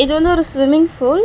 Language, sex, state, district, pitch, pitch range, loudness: Tamil, female, Tamil Nadu, Chennai, 310 Hz, 275-330 Hz, -14 LUFS